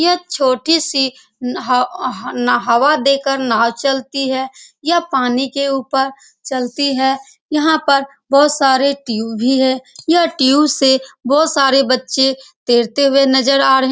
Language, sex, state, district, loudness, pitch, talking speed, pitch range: Hindi, female, Bihar, Saran, -15 LUFS, 270 Hz, 155 wpm, 260-280 Hz